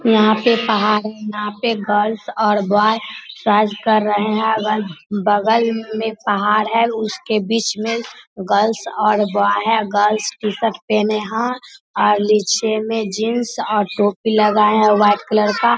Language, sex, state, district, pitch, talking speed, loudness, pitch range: Hindi, female, Bihar, Samastipur, 215 Hz, 150 wpm, -17 LUFS, 210-220 Hz